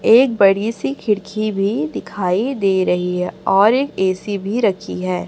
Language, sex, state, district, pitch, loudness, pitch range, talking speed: Hindi, female, Chhattisgarh, Raipur, 200 Hz, -18 LUFS, 185-220 Hz, 170 wpm